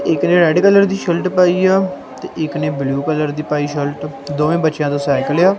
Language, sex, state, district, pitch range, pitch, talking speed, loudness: Punjabi, male, Punjab, Kapurthala, 145-180 Hz, 155 Hz, 225 wpm, -16 LUFS